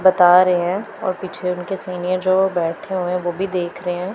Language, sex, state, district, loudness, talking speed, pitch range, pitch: Hindi, female, Punjab, Pathankot, -19 LUFS, 215 wpm, 180-185 Hz, 180 Hz